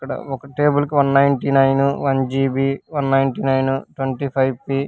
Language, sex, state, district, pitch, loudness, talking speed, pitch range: Telugu, male, Telangana, Hyderabad, 135 Hz, -18 LUFS, 195 wpm, 135-140 Hz